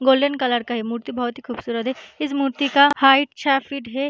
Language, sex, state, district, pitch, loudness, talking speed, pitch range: Hindi, female, Bihar, Vaishali, 270 Hz, -20 LUFS, 235 wpm, 245-280 Hz